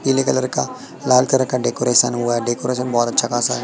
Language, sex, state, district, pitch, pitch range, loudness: Hindi, male, Madhya Pradesh, Katni, 125 Hz, 120-125 Hz, -18 LUFS